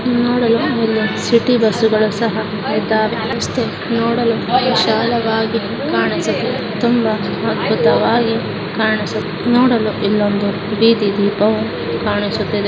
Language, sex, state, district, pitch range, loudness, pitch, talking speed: Kannada, female, Karnataka, Chamarajanagar, 210-230 Hz, -16 LUFS, 220 Hz, 90 wpm